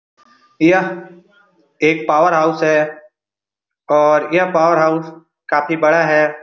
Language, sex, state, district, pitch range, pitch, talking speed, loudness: Hindi, male, Bihar, Supaul, 150-180 Hz, 160 Hz, 110 wpm, -15 LUFS